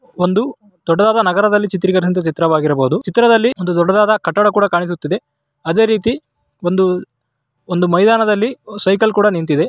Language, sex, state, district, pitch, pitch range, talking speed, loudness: Kannada, male, Karnataka, Raichur, 190 Hz, 170-210 Hz, 120 wpm, -15 LUFS